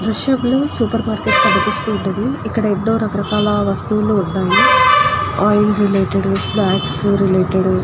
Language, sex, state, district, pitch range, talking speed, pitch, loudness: Telugu, female, Andhra Pradesh, Guntur, 190-215 Hz, 140 wpm, 205 Hz, -15 LUFS